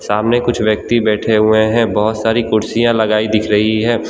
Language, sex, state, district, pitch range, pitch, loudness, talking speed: Hindi, male, Gujarat, Valsad, 110-115 Hz, 110 Hz, -14 LUFS, 190 wpm